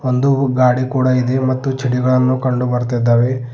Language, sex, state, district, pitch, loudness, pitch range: Kannada, male, Karnataka, Bidar, 130 Hz, -16 LUFS, 125-130 Hz